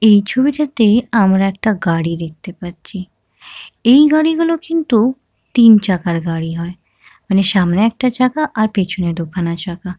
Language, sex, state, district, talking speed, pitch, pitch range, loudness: Bengali, female, West Bengal, Kolkata, 125 wpm, 195 Hz, 175-245 Hz, -14 LUFS